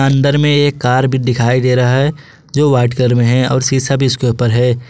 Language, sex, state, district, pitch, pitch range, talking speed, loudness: Hindi, male, Jharkhand, Garhwa, 130 Hz, 125-140 Hz, 245 wpm, -13 LUFS